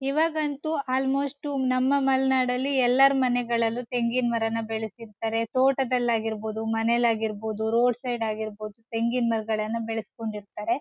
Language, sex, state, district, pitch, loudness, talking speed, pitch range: Kannada, female, Karnataka, Shimoga, 235 Hz, -26 LUFS, 115 wpm, 225-265 Hz